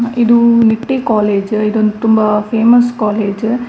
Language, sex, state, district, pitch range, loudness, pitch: Kannada, female, Karnataka, Dakshina Kannada, 210-235 Hz, -12 LUFS, 225 Hz